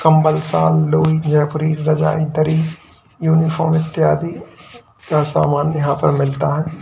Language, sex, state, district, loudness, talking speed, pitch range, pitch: Hindi, male, Uttar Pradesh, Lalitpur, -16 LUFS, 125 wpm, 145-160 Hz, 155 Hz